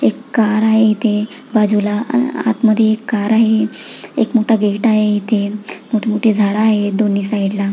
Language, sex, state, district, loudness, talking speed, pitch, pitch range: Marathi, female, Maharashtra, Pune, -15 LUFS, 165 wpm, 215 Hz, 210-225 Hz